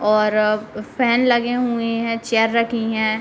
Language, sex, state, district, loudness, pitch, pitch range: Hindi, female, Uttar Pradesh, Deoria, -19 LUFS, 230 Hz, 215-235 Hz